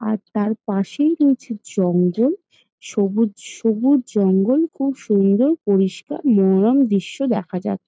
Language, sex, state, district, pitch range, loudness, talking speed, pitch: Bengali, female, West Bengal, Jalpaiguri, 195-270 Hz, -19 LUFS, 115 wpm, 220 Hz